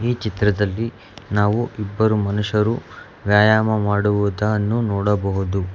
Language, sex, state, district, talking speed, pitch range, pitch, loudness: Kannada, male, Karnataka, Bangalore, 85 wpm, 100-110 Hz, 105 Hz, -20 LUFS